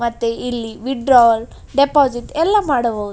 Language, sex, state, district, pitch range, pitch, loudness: Kannada, female, Karnataka, Dakshina Kannada, 230-275 Hz, 240 Hz, -16 LUFS